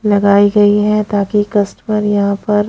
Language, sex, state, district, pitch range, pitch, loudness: Hindi, female, Punjab, Pathankot, 205-210 Hz, 205 Hz, -13 LUFS